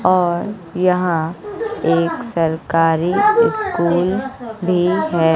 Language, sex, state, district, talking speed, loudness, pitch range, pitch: Hindi, female, Bihar, West Champaran, 80 wpm, -17 LUFS, 165-225 Hz, 180 Hz